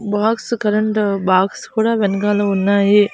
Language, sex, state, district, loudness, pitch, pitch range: Telugu, female, Andhra Pradesh, Annamaya, -16 LUFS, 205 Hz, 200-215 Hz